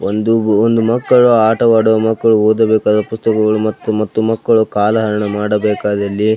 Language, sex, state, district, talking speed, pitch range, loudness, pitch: Kannada, male, Karnataka, Belgaum, 115 wpm, 105-110 Hz, -13 LUFS, 110 Hz